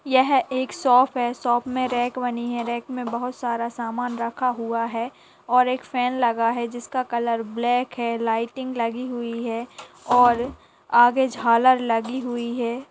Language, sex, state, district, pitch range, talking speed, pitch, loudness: Hindi, female, Uttar Pradesh, Jalaun, 235-255 Hz, 165 wpm, 240 Hz, -23 LUFS